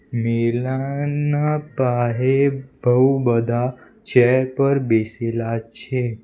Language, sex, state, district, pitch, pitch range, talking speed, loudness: Gujarati, male, Gujarat, Valsad, 125 Hz, 120-140 Hz, 85 wpm, -20 LUFS